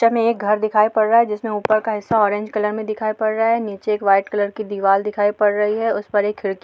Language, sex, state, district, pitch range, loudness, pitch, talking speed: Hindi, female, Bihar, Saharsa, 205-220 Hz, -19 LUFS, 210 Hz, 305 wpm